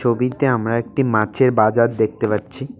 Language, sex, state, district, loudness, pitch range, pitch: Bengali, male, West Bengal, Cooch Behar, -18 LUFS, 110-130 Hz, 120 Hz